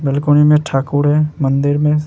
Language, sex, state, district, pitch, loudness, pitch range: Hindi, male, Bihar, Vaishali, 145 Hz, -14 LUFS, 140-150 Hz